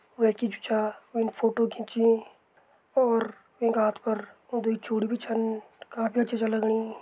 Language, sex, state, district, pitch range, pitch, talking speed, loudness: Garhwali, male, Uttarakhand, Tehri Garhwal, 220-230 Hz, 225 Hz, 160 wpm, -28 LUFS